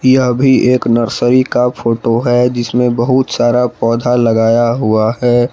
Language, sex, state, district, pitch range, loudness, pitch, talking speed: Hindi, male, Jharkhand, Palamu, 115-125 Hz, -12 LUFS, 120 Hz, 150 wpm